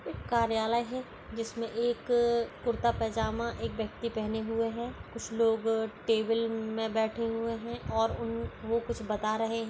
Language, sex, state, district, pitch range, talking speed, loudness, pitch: Hindi, female, Maharashtra, Dhule, 225-235 Hz, 155 wpm, -32 LUFS, 230 Hz